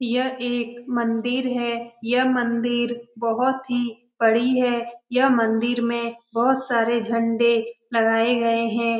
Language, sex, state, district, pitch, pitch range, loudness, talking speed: Hindi, female, Bihar, Lakhisarai, 235 Hz, 230-245 Hz, -22 LUFS, 125 wpm